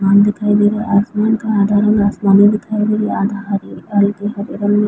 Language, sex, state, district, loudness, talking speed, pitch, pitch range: Hindi, female, Chhattisgarh, Bilaspur, -15 LUFS, 235 wpm, 205 Hz, 200-215 Hz